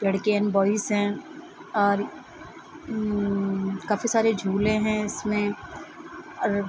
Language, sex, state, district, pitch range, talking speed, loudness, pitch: Hindi, female, Bihar, Bhagalpur, 200-240 Hz, 115 wpm, -25 LUFS, 210 Hz